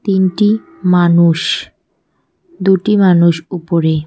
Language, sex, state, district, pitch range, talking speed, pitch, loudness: Bengali, female, West Bengal, Cooch Behar, 170-195 Hz, 75 wpm, 180 Hz, -13 LUFS